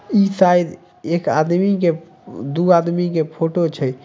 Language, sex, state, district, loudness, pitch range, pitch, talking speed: Maithili, male, Bihar, Samastipur, -18 LUFS, 160-185 Hz, 170 Hz, 150 wpm